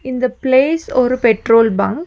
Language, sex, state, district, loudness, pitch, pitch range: Tamil, female, Tamil Nadu, Nilgiris, -14 LUFS, 255 Hz, 230-260 Hz